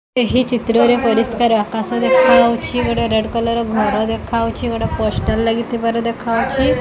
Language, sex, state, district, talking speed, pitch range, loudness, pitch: Odia, female, Odisha, Khordha, 125 wpm, 230-245 Hz, -16 LUFS, 235 Hz